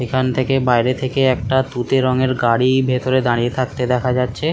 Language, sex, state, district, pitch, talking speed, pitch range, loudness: Bengali, male, West Bengal, Kolkata, 130 Hz, 170 wpm, 125-130 Hz, -17 LUFS